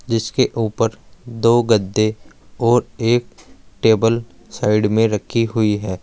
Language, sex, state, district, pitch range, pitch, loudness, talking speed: Hindi, male, Uttar Pradesh, Saharanpur, 105-115 Hz, 115 Hz, -18 LUFS, 120 wpm